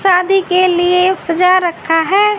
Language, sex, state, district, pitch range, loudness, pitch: Hindi, female, Haryana, Rohtak, 355-380 Hz, -12 LUFS, 365 Hz